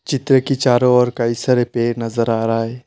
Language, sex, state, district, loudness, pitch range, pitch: Hindi, male, West Bengal, Alipurduar, -17 LUFS, 115-125 Hz, 120 Hz